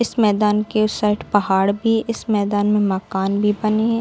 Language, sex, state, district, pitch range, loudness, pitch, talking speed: Hindi, female, Bihar, Darbhanga, 205-215 Hz, -19 LUFS, 210 Hz, 210 wpm